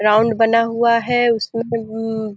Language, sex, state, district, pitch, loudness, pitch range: Hindi, female, Uttar Pradesh, Deoria, 230 Hz, -17 LUFS, 220-230 Hz